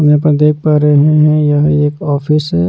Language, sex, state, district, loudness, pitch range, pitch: Hindi, male, Punjab, Pathankot, -11 LUFS, 145-150 Hz, 150 Hz